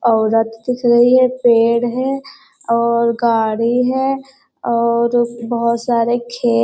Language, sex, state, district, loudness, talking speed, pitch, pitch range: Hindi, female, Bihar, Jamui, -16 LUFS, 110 wpm, 235 Hz, 235-250 Hz